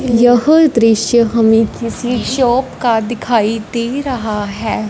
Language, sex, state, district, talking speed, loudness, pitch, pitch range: Hindi, female, Punjab, Fazilka, 120 wpm, -14 LUFS, 235 Hz, 225-245 Hz